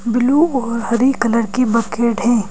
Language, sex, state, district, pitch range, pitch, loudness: Hindi, female, Madhya Pradesh, Bhopal, 230-250 Hz, 235 Hz, -16 LUFS